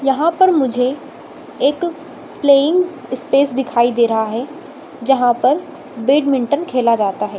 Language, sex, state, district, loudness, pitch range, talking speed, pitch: Hindi, female, Bihar, Samastipur, -16 LUFS, 245-310 Hz, 130 wpm, 275 Hz